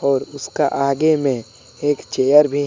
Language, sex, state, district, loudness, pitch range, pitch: Hindi, male, Jharkhand, Deoghar, -18 LUFS, 130-145 Hz, 140 Hz